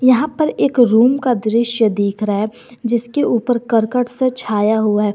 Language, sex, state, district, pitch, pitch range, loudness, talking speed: Hindi, female, Jharkhand, Garhwa, 235 Hz, 215-250 Hz, -16 LUFS, 185 wpm